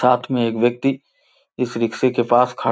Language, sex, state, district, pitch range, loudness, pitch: Hindi, male, Uttar Pradesh, Gorakhpur, 120-125 Hz, -19 LUFS, 120 Hz